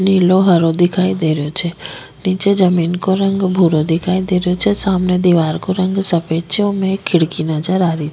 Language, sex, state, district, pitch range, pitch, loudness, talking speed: Rajasthani, female, Rajasthan, Nagaur, 165-190 Hz, 180 Hz, -15 LUFS, 200 wpm